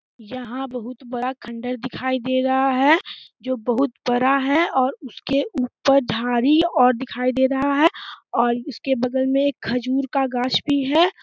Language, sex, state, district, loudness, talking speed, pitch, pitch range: Hindi, female, Jharkhand, Sahebganj, -21 LUFS, 175 wpm, 260 Hz, 250-275 Hz